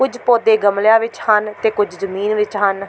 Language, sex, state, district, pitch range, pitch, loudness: Punjabi, female, Delhi, New Delhi, 200-225 Hz, 210 Hz, -16 LUFS